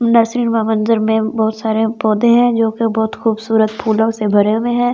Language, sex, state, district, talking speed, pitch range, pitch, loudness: Hindi, female, Delhi, New Delhi, 205 wpm, 220-230 Hz, 225 Hz, -15 LUFS